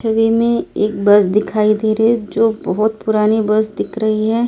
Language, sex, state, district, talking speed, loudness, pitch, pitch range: Hindi, female, Delhi, New Delhi, 200 wpm, -15 LUFS, 215 Hz, 215-225 Hz